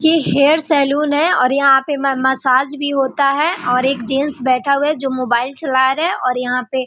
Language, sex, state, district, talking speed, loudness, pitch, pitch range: Hindi, female, Bihar, Gopalganj, 235 wpm, -15 LUFS, 275 Hz, 260-290 Hz